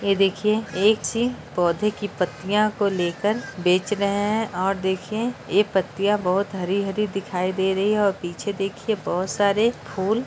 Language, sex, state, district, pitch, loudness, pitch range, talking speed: Hindi, female, Jharkhand, Jamtara, 200 Hz, -23 LUFS, 190-210 Hz, 165 wpm